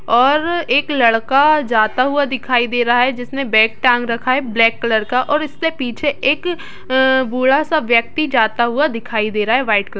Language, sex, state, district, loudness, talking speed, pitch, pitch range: Hindi, female, Bihar, East Champaran, -15 LUFS, 200 wpm, 255 Hz, 230-285 Hz